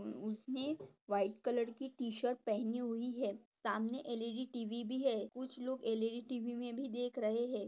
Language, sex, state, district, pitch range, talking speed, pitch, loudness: Hindi, female, Maharashtra, Dhule, 225-250 Hz, 220 wpm, 240 Hz, -40 LUFS